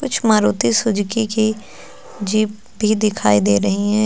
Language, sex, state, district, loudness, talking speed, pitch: Hindi, female, Uttar Pradesh, Lucknow, -17 LUFS, 150 wpm, 210 Hz